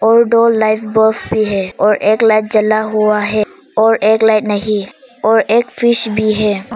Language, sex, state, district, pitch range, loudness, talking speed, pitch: Hindi, female, Arunachal Pradesh, Papum Pare, 210-225 Hz, -13 LUFS, 195 wpm, 215 Hz